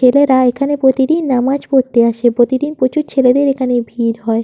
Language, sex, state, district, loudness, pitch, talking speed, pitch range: Bengali, female, West Bengal, Purulia, -13 LUFS, 255 Hz, 160 wpm, 240-275 Hz